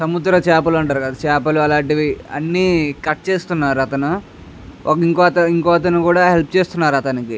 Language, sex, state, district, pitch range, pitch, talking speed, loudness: Telugu, male, Andhra Pradesh, Krishna, 145-175 Hz, 160 Hz, 105 wpm, -16 LUFS